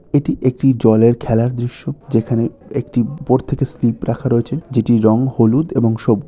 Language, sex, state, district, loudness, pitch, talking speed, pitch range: Bengali, male, West Bengal, North 24 Parganas, -16 LUFS, 120 Hz, 160 wpm, 115-135 Hz